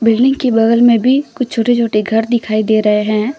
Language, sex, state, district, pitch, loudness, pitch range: Hindi, female, Jharkhand, Deoghar, 230 Hz, -13 LUFS, 220-245 Hz